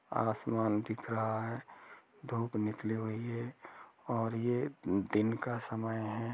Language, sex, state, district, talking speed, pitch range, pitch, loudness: Hindi, male, Chhattisgarh, Rajnandgaon, 130 wpm, 110-120 Hz, 115 Hz, -36 LUFS